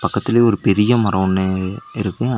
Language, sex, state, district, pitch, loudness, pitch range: Tamil, male, Tamil Nadu, Nilgiris, 105 Hz, -17 LUFS, 95-120 Hz